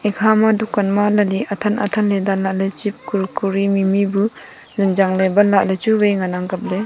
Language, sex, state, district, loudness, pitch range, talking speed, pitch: Wancho, female, Arunachal Pradesh, Longding, -17 LUFS, 195-210 Hz, 235 wpm, 200 Hz